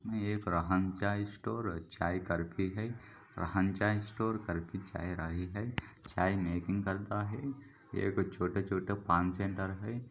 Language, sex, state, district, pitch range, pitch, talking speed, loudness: Hindi, male, Maharashtra, Solapur, 90-105 Hz, 100 Hz, 140 wpm, -36 LUFS